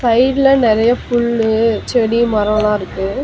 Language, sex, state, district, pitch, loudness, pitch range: Tamil, female, Tamil Nadu, Chennai, 230 Hz, -14 LUFS, 215-240 Hz